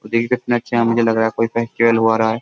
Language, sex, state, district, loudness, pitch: Hindi, male, Uttar Pradesh, Jyotiba Phule Nagar, -17 LUFS, 115 Hz